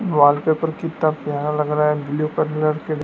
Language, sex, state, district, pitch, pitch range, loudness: Hindi, male, Madhya Pradesh, Dhar, 155 Hz, 150-155 Hz, -20 LUFS